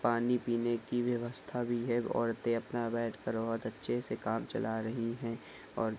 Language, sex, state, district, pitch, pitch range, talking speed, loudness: Hindi, male, Bihar, Saharsa, 115 Hz, 115-120 Hz, 180 wpm, -35 LUFS